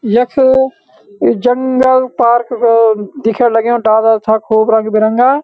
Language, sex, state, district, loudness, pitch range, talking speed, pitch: Garhwali, male, Uttarakhand, Uttarkashi, -11 LUFS, 220-255 Hz, 120 wpm, 235 Hz